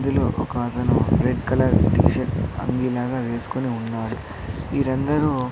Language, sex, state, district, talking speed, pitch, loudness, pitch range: Telugu, male, Andhra Pradesh, Sri Satya Sai, 120 wpm, 120 Hz, -22 LUFS, 115-130 Hz